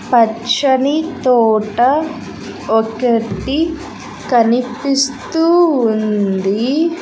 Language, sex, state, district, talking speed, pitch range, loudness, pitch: Telugu, female, Andhra Pradesh, Sri Satya Sai, 45 wpm, 225-290 Hz, -15 LUFS, 250 Hz